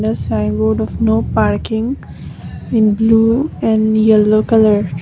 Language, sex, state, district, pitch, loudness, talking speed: English, female, Assam, Kamrup Metropolitan, 210 Hz, -14 LUFS, 130 wpm